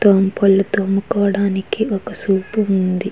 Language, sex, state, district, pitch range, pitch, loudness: Telugu, female, Andhra Pradesh, Chittoor, 195-205 Hz, 195 Hz, -17 LUFS